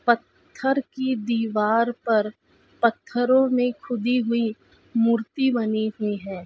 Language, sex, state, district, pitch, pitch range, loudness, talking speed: Hindi, female, Chhattisgarh, Balrampur, 235 Hz, 220-250 Hz, -23 LUFS, 110 wpm